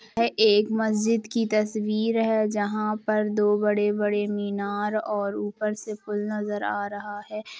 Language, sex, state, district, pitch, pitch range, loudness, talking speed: Hindi, female, Chhattisgarh, Rajnandgaon, 210 Hz, 205-215 Hz, -25 LUFS, 160 wpm